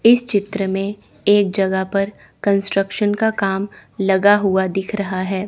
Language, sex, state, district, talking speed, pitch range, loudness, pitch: Hindi, female, Chandigarh, Chandigarh, 155 wpm, 195-205 Hz, -18 LUFS, 195 Hz